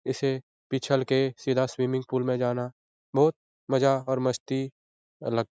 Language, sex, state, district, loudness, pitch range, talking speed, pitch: Hindi, male, Bihar, Jahanabad, -27 LUFS, 125-135 Hz, 150 wpm, 130 Hz